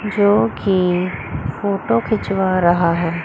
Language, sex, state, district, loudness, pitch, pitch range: Hindi, female, Chandigarh, Chandigarh, -18 LUFS, 180 Hz, 170-195 Hz